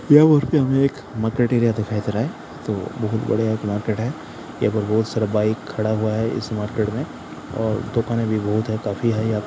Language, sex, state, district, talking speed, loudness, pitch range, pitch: Hindi, male, Bihar, Saran, 220 wpm, -21 LUFS, 105-115 Hz, 110 Hz